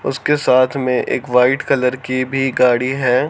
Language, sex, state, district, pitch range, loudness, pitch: Hindi, male, Haryana, Charkhi Dadri, 125-135 Hz, -16 LUFS, 130 Hz